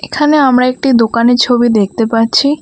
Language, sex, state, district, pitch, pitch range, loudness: Bengali, female, West Bengal, Alipurduar, 245 Hz, 230-270 Hz, -10 LUFS